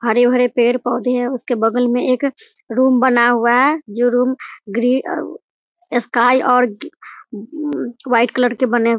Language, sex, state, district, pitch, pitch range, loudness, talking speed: Hindi, female, Bihar, Muzaffarpur, 245 Hz, 240-260 Hz, -16 LUFS, 165 wpm